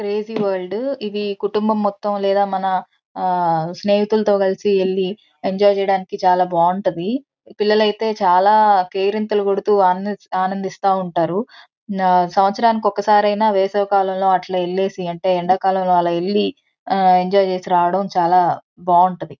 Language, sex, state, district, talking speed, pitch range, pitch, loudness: Telugu, female, Andhra Pradesh, Guntur, 125 wpm, 185-205 Hz, 195 Hz, -18 LUFS